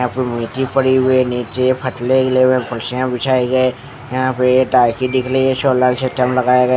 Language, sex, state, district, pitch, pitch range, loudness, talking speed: Hindi, male, Odisha, Khordha, 130 Hz, 125-130 Hz, -16 LUFS, 215 wpm